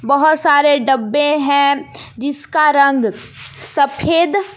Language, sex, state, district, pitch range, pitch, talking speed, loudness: Hindi, female, Jharkhand, Palamu, 280-305 Hz, 285 Hz, 90 wpm, -14 LUFS